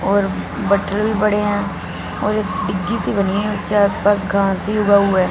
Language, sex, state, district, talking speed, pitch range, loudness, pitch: Hindi, female, Punjab, Fazilka, 215 wpm, 195-210 Hz, -18 LUFS, 205 Hz